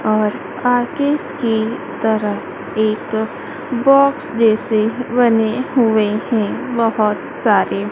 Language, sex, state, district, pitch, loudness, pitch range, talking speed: Hindi, female, Madhya Pradesh, Dhar, 225 Hz, -17 LUFS, 215-250 Hz, 90 wpm